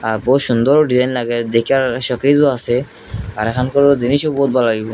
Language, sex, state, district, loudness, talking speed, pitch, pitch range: Bengali, male, Assam, Hailakandi, -15 LUFS, 180 wpm, 125 Hz, 115-140 Hz